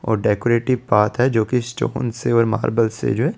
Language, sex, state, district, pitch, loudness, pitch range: Hindi, male, Chandigarh, Chandigarh, 115 Hz, -19 LUFS, 110-125 Hz